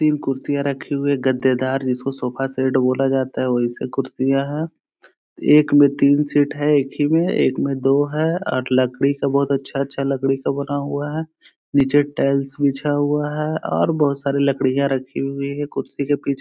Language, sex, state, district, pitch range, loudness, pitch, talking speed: Hindi, male, Bihar, Araria, 135-145 Hz, -20 LUFS, 140 Hz, 195 wpm